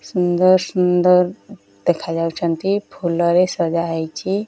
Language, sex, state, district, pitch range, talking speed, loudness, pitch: Odia, female, Odisha, Nuapada, 165-185 Hz, 80 wpm, -18 LUFS, 180 Hz